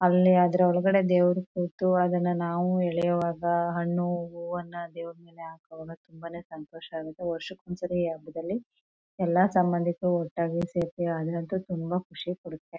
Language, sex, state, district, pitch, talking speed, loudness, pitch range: Kannada, female, Karnataka, Chamarajanagar, 175 Hz, 125 wpm, -27 LUFS, 170-180 Hz